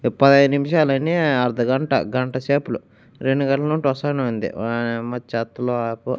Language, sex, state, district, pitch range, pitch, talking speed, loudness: Telugu, male, Andhra Pradesh, Annamaya, 120-140 Hz, 130 Hz, 105 wpm, -20 LUFS